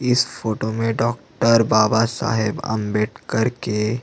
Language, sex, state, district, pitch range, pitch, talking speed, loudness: Hindi, male, Chhattisgarh, Jashpur, 110-115 Hz, 110 Hz, 135 wpm, -20 LUFS